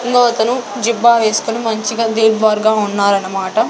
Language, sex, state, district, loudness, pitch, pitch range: Telugu, female, Andhra Pradesh, Sri Satya Sai, -14 LUFS, 220 Hz, 215-235 Hz